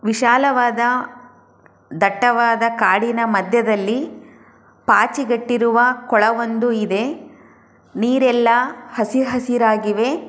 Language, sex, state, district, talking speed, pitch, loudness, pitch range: Kannada, female, Karnataka, Chamarajanagar, 70 wpm, 240 Hz, -17 LUFS, 225-250 Hz